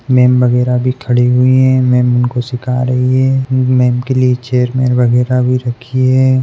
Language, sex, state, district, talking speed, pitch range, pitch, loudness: Hindi, male, Bihar, Samastipur, 205 wpm, 125-130 Hz, 125 Hz, -12 LUFS